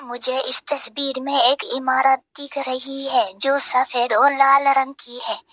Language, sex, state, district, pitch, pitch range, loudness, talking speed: Hindi, female, Assam, Hailakandi, 270 Hz, 255-275 Hz, -19 LUFS, 175 wpm